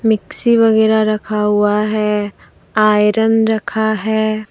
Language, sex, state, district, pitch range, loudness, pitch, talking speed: Hindi, female, Jharkhand, Deoghar, 210-220 Hz, -14 LUFS, 215 Hz, 105 wpm